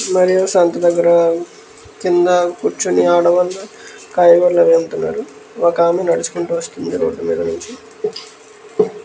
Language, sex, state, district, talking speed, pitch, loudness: Telugu, male, Andhra Pradesh, Krishna, 105 wpm, 180 Hz, -15 LUFS